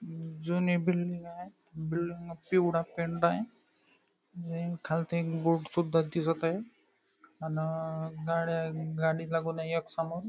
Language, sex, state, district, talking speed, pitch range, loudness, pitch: Marathi, male, Maharashtra, Nagpur, 115 wpm, 165-175 Hz, -32 LUFS, 165 Hz